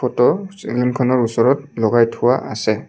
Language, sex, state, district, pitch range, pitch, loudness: Assamese, male, Assam, Kamrup Metropolitan, 115-135 Hz, 120 Hz, -17 LUFS